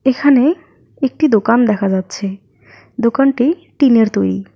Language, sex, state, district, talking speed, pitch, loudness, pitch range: Bengali, female, West Bengal, Alipurduar, 105 wpm, 245 Hz, -14 LUFS, 200-275 Hz